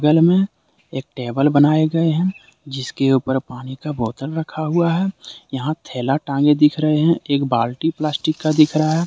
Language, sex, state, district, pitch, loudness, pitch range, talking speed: Hindi, male, Jharkhand, Deoghar, 150 Hz, -18 LUFS, 135-160 Hz, 185 wpm